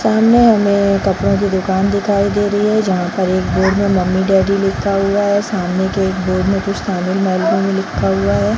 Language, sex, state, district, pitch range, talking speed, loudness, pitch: Hindi, female, Bihar, Jamui, 185-200 Hz, 230 wpm, -15 LUFS, 195 Hz